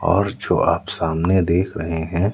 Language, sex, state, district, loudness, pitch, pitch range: Hindi, male, Madhya Pradesh, Umaria, -20 LUFS, 85 Hz, 80-95 Hz